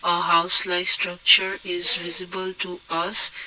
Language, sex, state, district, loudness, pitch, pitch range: English, male, Assam, Kamrup Metropolitan, -18 LUFS, 180 Hz, 175-190 Hz